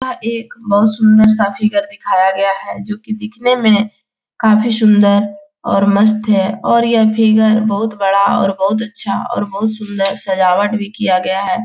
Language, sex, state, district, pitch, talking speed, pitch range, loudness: Hindi, female, Bihar, Jahanabad, 215 Hz, 165 wpm, 200-225 Hz, -14 LUFS